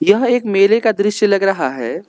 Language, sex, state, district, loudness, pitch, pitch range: Hindi, male, Arunachal Pradesh, Lower Dibang Valley, -15 LUFS, 205 Hz, 200-220 Hz